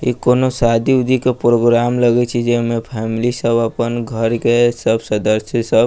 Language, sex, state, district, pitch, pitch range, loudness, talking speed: Maithili, male, Bihar, Sitamarhi, 120 Hz, 115-120 Hz, -16 LUFS, 185 wpm